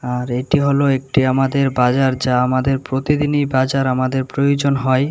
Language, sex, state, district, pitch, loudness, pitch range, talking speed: Bengali, male, Tripura, West Tripura, 135 Hz, -17 LUFS, 130-140 Hz, 150 wpm